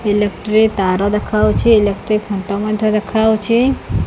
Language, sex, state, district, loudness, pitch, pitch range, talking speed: Odia, female, Odisha, Khordha, -15 LUFS, 215 Hz, 205-220 Hz, 105 wpm